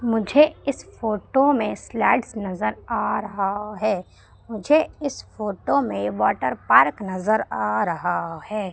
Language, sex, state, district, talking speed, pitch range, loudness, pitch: Hindi, female, Madhya Pradesh, Umaria, 130 wpm, 195-240 Hz, -22 LUFS, 215 Hz